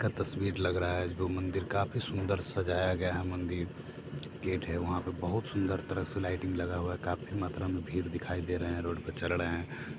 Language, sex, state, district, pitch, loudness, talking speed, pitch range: Hindi, male, Bihar, Sitamarhi, 90 Hz, -34 LUFS, 240 wpm, 85-95 Hz